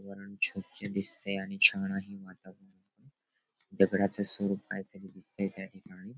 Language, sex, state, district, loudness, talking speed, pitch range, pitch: Marathi, male, Maharashtra, Dhule, -28 LUFS, 125 wpm, 95-100 Hz, 100 Hz